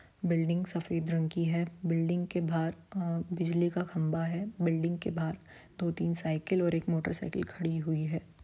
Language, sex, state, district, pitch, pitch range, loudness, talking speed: Hindi, female, Bihar, Saran, 170 Hz, 165-175 Hz, -32 LUFS, 165 wpm